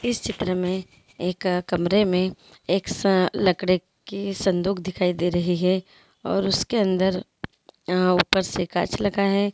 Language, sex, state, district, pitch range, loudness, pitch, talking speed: Hindi, female, Andhra Pradesh, Chittoor, 180-195 Hz, -23 LUFS, 185 Hz, 145 wpm